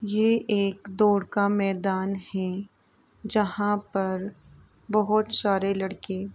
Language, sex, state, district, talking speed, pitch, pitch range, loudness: Hindi, female, Uttar Pradesh, Etah, 115 wpm, 200 Hz, 195-210 Hz, -26 LUFS